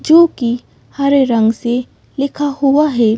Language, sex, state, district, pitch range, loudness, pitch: Hindi, female, Madhya Pradesh, Bhopal, 235-285 Hz, -14 LUFS, 275 Hz